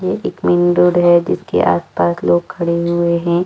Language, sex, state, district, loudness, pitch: Hindi, female, Chhattisgarh, Jashpur, -15 LUFS, 170 Hz